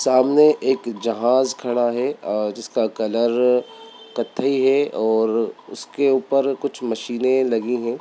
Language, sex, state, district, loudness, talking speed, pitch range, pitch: Hindi, male, Bihar, Sitamarhi, -20 LUFS, 120 wpm, 115-135 Hz, 125 Hz